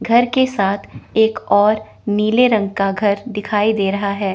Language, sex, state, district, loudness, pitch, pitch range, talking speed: Hindi, female, Chandigarh, Chandigarh, -17 LUFS, 210 Hz, 200-220 Hz, 180 wpm